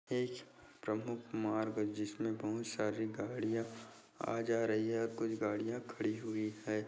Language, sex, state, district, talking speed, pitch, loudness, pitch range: Hindi, male, Maharashtra, Dhule, 140 wpm, 110 Hz, -39 LUFS, 110-115 Hz